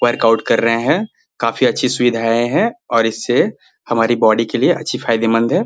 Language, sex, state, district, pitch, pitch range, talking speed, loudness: Hindi, male, Bihar, Gaya, 115 Hz, 115-120 Hz, 180 wpm, -16 LUFS